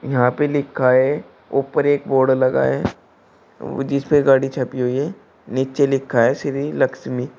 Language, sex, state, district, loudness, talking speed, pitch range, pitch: Hindi, male, Uttar Pradesh, Shamli, -19 LUFS, 170 wpm, 130-145 Hz, 135 Hz